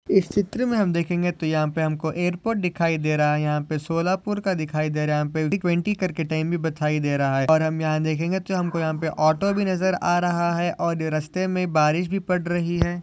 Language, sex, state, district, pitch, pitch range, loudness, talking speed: Hindi, male, Maharashtra, Solapur, 170 Hz, 155-185 Hz, -23 LUFS, 250 wpm